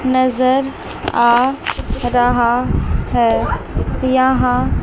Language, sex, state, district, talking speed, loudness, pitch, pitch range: Hindi, female, Chandigarh, Chandigarh, 60 wpm, -16 LUFS, 245 Hz, 235-260 Hz